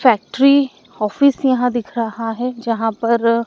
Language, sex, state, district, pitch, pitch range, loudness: Hindi, female, Madhya Pradesh, Dhar, 235 Hz, 230-255 Hz, -17 LUFS